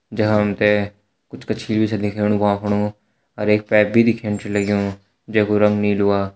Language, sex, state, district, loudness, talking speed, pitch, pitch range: Hindi, male, Uttarakhand, Tehri Garhwal, -19 LUFS, 200 wpm, 105 Hz, 105-110 Hz